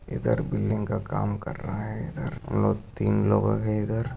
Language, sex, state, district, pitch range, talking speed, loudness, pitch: Hindi, male, Maharashtra, Sindhudurg, 105-130 Hz, 185 wpm, -27 LUFS, 110 Hz